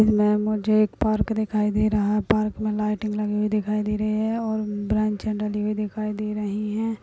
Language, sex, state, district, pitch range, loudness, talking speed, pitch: Hindi, female, Uttar Pradesh, Muzaffarnagar, 210-215 Hz, -24 LUFS, 180 wpm, 210 Hz